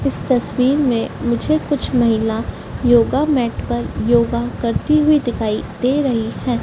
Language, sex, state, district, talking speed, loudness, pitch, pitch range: Hindi, female, Madhya Pradesh, Dhar, 145 wpm, -17 LUFS, 245 Hz, 235-280 Hz